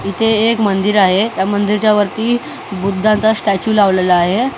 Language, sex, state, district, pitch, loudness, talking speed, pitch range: Marathi, male, Maharashtra, Mumbai Suburban, 205 Hz, -13 LUFS, 145 wpm, 195-220 Hz